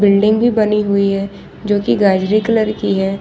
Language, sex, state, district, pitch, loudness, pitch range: Hindi, female, Jharkhand, Ranchi, 205 Hz, -15 LUFS, 195-215 Hz